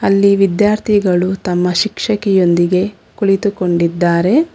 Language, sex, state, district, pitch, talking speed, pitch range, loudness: Kannada, female, Karnataka, Bangalore, 195 Hz, 65 wpm, 180-205 Hz, -14 LUFS